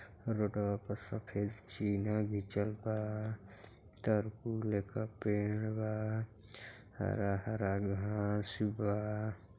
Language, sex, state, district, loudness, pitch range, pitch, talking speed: Bhojpuri, male, Uttar Pradesh, Gorakhpur, -37 LUFS, 100-110 Hz, 105 Hz, 80 wpm